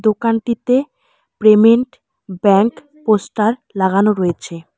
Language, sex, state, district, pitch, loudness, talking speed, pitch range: Bengali, male, West Bengal, Alipurduar, 220 Hz, -15 LUFS, 75 wpm, 200-245 Hz